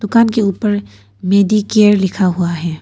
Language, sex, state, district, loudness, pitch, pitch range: Hindi, female, Arunachal Pradesh, Papum Pare, -14 LUFS, 200 Hz, 175-210 Hz